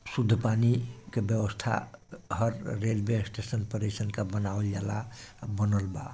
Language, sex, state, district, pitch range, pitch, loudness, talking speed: Bhojpuri, male, Bihar, Gopalganj, 105-115 Hz, 110 Hz, -30 LUFS, 135 wpm